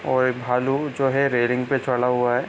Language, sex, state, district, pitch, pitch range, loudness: Hindi, male, Bihar, East Champaran, 130 Hz, 125-135 Hz, -22 LUFS